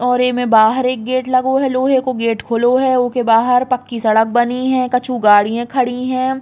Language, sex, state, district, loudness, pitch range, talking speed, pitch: Bundeli, female, Uttar Pradesh, Hamirpur, -15 LUFS, 235-255 Hz, 215 wpm, 250 Hz